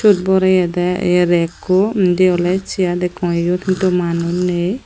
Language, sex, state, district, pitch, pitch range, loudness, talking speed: Chakma, female, Tripura, Unakoti, 180 Hz, 175-185 Hz, -16 LUFS, 150 wpm